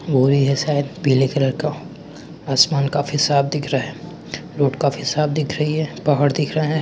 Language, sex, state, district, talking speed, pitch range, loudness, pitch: Hindi, male, West Bengal, Purulia, 195 wpm, 140-150 Hz, -19 LUFS, 145 Hz